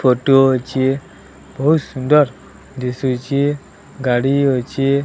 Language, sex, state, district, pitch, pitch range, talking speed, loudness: Odia, male, Odisha, Sambalpur, 135 Hz, 125-140 Hz, 85 wpm, -17 LUFS